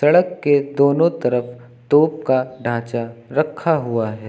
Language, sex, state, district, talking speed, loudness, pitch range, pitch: Hindi, male, Uttar Pradesh, Lucknow, 140 wpm, -19 LUFS, 120-150 Hz, 130 Hz